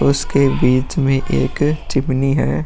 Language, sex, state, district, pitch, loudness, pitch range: Hindi, male, Uttar Pradesh, Muzaffarnagar, 135 Hz, -17 LUFS, 130-140 Hz